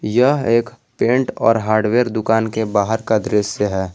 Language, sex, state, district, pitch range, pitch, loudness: Hindi, male, Jharkhand, Garhwa, 105-120 Hz, 110 Hz, -17 LUFS